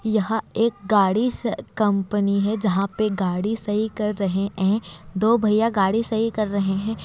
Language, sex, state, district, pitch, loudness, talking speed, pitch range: Hindi, female, Bihar, Kishanganj, 210 Hz, -22 LUFS, 170 wpm, 195-220 Hz